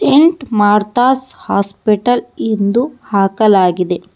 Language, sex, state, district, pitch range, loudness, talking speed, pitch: Kannada, female, Karnataka, Bangalore, 200-255 Hz, -14 LUFS, 70 wpm, 215 Hz